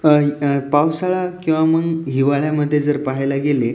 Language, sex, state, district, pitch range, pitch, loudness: Marathi, male, Maharashtra, Aurangabad, 140-160 Hz, 150 Hz, -18 LUFS